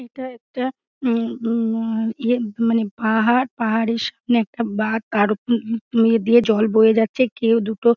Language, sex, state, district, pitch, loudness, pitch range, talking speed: Bengali, female, West Bengal, Dakshin Dinajpur, 230 Hz, -19 LUFS, 220-240 Hz, 130 wpm